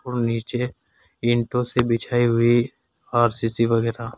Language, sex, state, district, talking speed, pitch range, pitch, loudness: Hindi, male, Uttar Pradesh, Saharanpur, 115 wpm, 115-120 Hz, 120 Hz, -22 LUFS